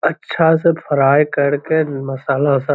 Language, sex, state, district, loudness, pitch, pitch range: Magahi, male, Bihar, Lakhisarai, -16 LUFS, 145 Hz, 140-160 Hz